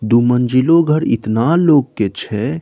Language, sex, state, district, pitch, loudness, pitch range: Maithili, male, Bihar, Saharsa, 125 Hz, -14 LUFS, 115-155 Hz